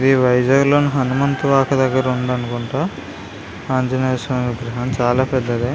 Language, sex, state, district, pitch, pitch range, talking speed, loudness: Telugu, male, Andhra Pradesh, Visakhapatnam, 130 Hz, 120-135 Hz, 135 wpm, -18 LUFS